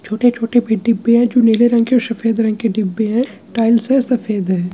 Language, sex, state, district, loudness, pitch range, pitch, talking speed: Hindi, male, Chhattisgarh, Kabirdham, -15 LUFS, 220-240 Hz, 230 Hz, 215 wpm